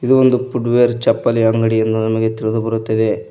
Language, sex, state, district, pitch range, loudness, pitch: Kannada, male, Karnataka, Koppal, 110-120 Hz, -16 LUFS, 115 Hz